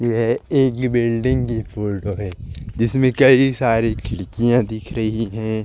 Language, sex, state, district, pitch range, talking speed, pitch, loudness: Hindi, male, Chhattisgarh, Korba, 110-125 Hz, 150 wpm, 115 Hz, -19 LUFS